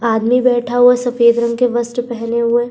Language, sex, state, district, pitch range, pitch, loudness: Hindi, female, Uttar Pradesh, Budaun, 235-245 Hz, 240 Hz, -14 LUFS